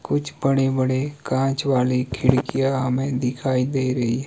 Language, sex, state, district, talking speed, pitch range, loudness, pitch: Hindi, male, Himachal Pradesh, Shimla, 155 wpm, 130-135 Hz, -22 LUFS, 130 Hz